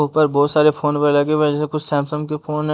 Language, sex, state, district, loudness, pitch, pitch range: Hindi, male, Haryana, Jhajjar, -18 LUFS, 150 Hz, 145-150 Hz